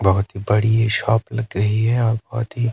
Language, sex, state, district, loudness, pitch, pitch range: Hindi, male, Himachal Pradesh, Shimla, -19 LUFS, 110 Hz, 105-115 Hz